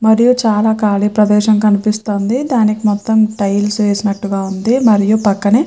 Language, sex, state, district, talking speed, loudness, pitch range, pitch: Telugu, female, Andhra Pradesh, Chittoor, 135 wpm, -13 LUFS, 205-220 Hz, 210 Hz